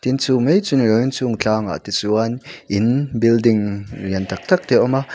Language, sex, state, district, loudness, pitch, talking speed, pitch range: Mizo, male, Mizoram, Aizawl, -18 LUFS, 115 Hz, 200 wpm, 105-130 Hz